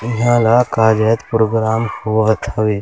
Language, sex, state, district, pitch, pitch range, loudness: Hindi, male, Chhattisgarh, Balrampur, 110 Hz, 110-115 Hz, -15 LUFS